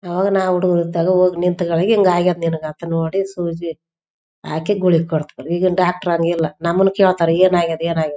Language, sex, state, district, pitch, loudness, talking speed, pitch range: Kannada, female, Karnataka, Raichur, 175 Hz, -17 LUFS, 170 wpm, 165-185 Hz